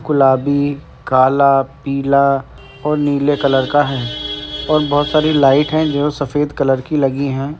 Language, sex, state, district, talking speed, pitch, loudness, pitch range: Hindi, male, Uttar Pradesh, Etah, 150 wpm, 140 Hz, -15 LUFS, 135-145 Hz